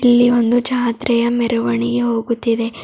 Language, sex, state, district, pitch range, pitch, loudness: Kannada, female, Karnataka, Bidar, 230-240 Hz, 235 Hz, -16 LUFS